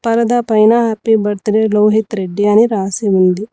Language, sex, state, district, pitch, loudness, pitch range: Telugu, female, Telangana, Mahabubabad, 215 Hz, -13 LUFS, 205-225 Hz